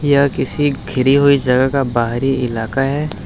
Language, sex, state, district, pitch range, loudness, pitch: Hindi, male, Uttar Pradesh, Lucknow, 125-140 Hz, -16 LUFS, 135 Hz